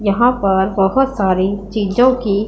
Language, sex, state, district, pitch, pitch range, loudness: Hindi, female, Punjab, Pathankot, 200 Hz, 195-240 Hz, -15 LUFS